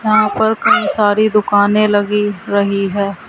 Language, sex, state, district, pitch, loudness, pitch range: Hindi, female, Uttar Pradesh, Saharanpur, 205 Hz, -14 LUFS, 200-215 Hz